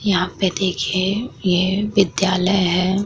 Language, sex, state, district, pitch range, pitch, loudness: Hindi, female, Bihar, Vaishali, 185-195 Hz, 190 Hz, -19 LUFS